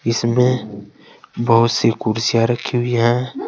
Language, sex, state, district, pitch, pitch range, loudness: Hindi, male, Uttar Pradesh, Saharanpur, 115 Hz, 115-120 Hz, -17 LUFS